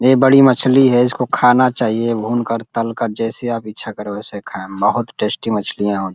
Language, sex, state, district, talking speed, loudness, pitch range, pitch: Hindi, male, Uttar Pradesh, Deoria, 215 wpm, -16 LUFS, 105-125 Hz, 115 Hz